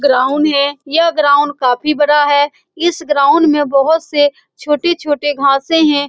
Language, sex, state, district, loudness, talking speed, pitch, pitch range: Hindi, female, Bihar, Saran, -13 LUFS, 150 wpm, 290 Hz, 285-310 Hz